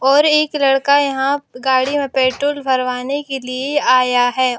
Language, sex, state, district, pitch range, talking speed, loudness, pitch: Hindi, female, Bihar, Sitamarhi, 255-285 Hz, 155 wpm, -16 LUFS, 270 Hz